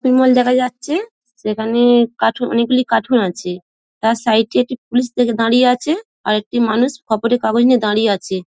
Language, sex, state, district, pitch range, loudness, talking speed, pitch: Bengali, female, West Bengal, Dakshin Dinajpur, 220-250 Hz, -16 LUFS, 170 wpm, 240 Hz